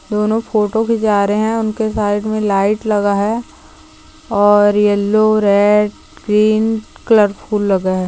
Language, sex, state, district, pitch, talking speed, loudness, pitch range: Hindi, female, Jharkhand, Sahebganj, 210 Hz, 140 wpm, -14 LUFS, 205-220 Hz